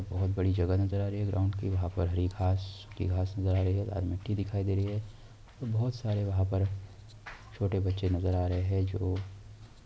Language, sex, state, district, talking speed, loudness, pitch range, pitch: Hindi, male, Bihar, Saharsa, 225 wpm, -31 LUFS, 95-105 Hz, 95 Hz